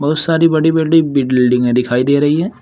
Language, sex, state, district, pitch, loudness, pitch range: Hindi, male, Uttar Pradesh, Saharanpur, 145 Hz, -13 LUFS, 125-160 Hz